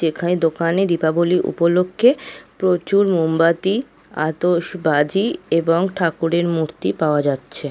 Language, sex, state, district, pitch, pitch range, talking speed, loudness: Bengali, female, West Bengal, Kolkata, 170 Hz, 160-185 Hz, 100 wpm, -18 LUFS